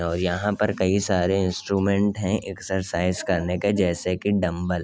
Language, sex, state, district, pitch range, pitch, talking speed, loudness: Hindi, male, Uttar Pradesh, Hamirpur, 90-100 Hz, 95 Hz, 160 wpm, -24 LUFS